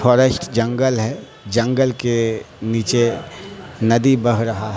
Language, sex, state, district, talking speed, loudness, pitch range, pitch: Hindi, male, Bihar, Katihar, 115 wpm, -18 LUFS, 115-130 Hz, 120 Hz